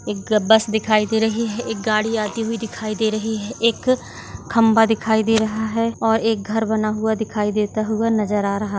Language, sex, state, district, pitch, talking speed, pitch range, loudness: Hindi, female, Maharashtra, Dhule, 220 Hz, 210 wpm, 215-225 Hz, -20 LUFS